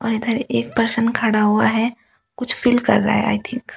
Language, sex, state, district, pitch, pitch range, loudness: Hindi, female, Delhi, New Delhi, 230 Hz, 220-245 Hz, -18 LUFS